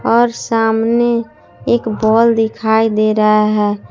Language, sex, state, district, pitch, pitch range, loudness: Hindi, female, Jharkhand, Palamu, 225 Hz, 215-230 Hz, -14 LUFS